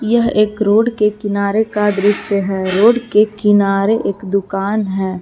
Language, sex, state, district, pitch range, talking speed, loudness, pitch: Hindi, female, Jharkhand, Palamu, 200-215 Hz, 160 wpm, -15 LUFS, 205 Hz